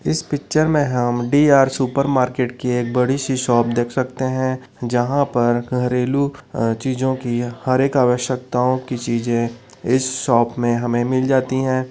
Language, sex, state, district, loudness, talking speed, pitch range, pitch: Hindi, male, Chhattisgarh, Korba, -19 LUFS, 165 wpm, 120-130 Hz, 130 Hz